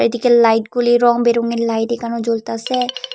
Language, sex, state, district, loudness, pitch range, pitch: Bengali, female, Tripura, Unakoti, -16 LUFS, 230-240 Hz, 235 Hz